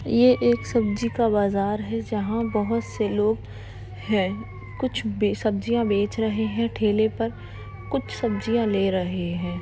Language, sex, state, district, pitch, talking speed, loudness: Hindi, female, Uttar Pradesh, Jalaun, 210 Hz, 135 wpm, -24 LUFS